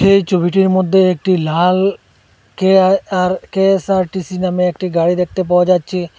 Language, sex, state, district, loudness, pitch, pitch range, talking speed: Bengali, male, Assam, Hailakandi, -14 LUFS, 185 Hz, 180-190 Hz, 135 wpm